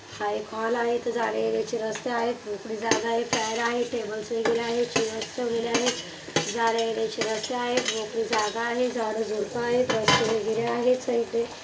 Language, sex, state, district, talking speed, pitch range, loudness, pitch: Marathi, female, Maharashtra, Dhule, 175 wpm, 220-235 Hz, -26 LUFS, 230 Hz